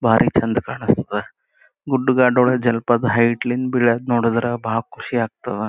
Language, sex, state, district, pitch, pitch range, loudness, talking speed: Kannada, male, Karnataka, Gulbarga, 120 Hz, 115-125 Hz, -19 LUFS, 160 wpm